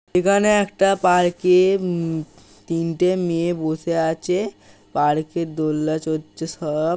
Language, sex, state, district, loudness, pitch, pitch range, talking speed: Bengali, male, West Bengal, Paschim Medinipur, -20 LUFS, 165 Hz, 160-180 Hz, 120 wpm